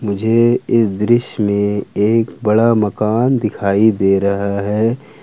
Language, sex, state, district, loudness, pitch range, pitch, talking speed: Hindi, male, Jharkhand, Ranchi, -15 LUFS, 100-115 Hz, 110 Hz, 125 wpm